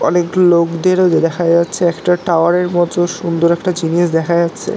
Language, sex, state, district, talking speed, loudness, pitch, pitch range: Bengali, male, West Bengal, North 24 Parganas, 175 wpm, -14 LUFS, 175 Hz, 170-180 Hz